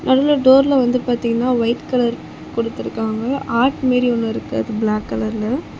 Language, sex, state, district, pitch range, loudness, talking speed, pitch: Tamil, female, Tamil Nadu, Chennai, 230-260 Hz, -18 LUFS, 155 wpm, 240 Hz